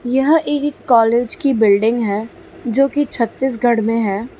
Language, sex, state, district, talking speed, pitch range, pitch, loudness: Hindi, female, Gujarat, Valsad, 150 wpm, 225-275 Hz, 240 Hz, -16 LUFS